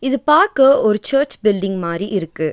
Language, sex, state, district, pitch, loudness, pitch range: Tamil, female, Tamil Nadu, Nilgiris, 215 Hz, -15 LUFS, 195-275 Hz